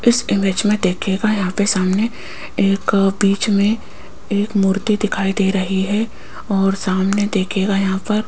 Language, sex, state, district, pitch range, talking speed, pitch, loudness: Hindi, female, Rajasthan, Jaipur, 195-210 Hz, 160 wpm, 200 Hz, -18 LUFS